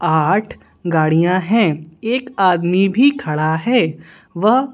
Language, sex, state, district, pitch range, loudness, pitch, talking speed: Hindi, female, Bihar, Patna, 160-230 Hz, -16 LUFS, 185 Hz, 100 wpm